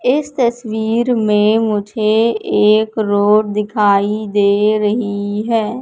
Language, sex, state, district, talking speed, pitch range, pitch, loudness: Hindi, female, Madhya Pradesh, Katni, 105 wpm, 210-225 Hz, 215 Hz, -15 LUFS